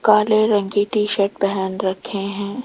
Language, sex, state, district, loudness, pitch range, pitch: Hindi, female, Rajasthan, Jaipur, -19 LUFS, 195-210 Hz, 200 Hz